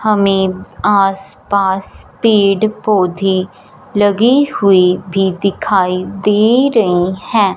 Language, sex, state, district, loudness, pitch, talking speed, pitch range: Hindi, female, Punjab, Fazilka, -13 LUFS, 195 Hz, 105 wpm, 190-210 Hz